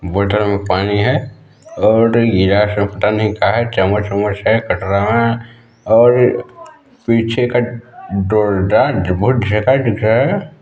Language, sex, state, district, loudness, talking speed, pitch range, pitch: Hindi, male, Chhattisgarh, Balrampur, -14 LUFS, 125 wpm, 100-120 Hz, 110 Hz